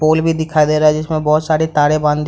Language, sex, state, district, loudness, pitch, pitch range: Hindi, male, Bihar, Madhepura, -14 LUFS, 155 Hz, 150-160 Hz